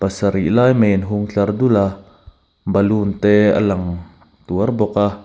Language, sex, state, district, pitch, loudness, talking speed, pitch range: Mizo, male, Mizoram, Aizawl, 100 Hz, -16 LUFS, 170 wpm, 95-105 Hz